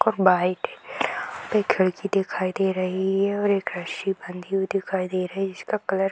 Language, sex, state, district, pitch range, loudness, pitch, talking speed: Hindi, female, Bihar, Jahanabad, 185-195 Hz, -25 LUFS, 190 Hz, 175 wpm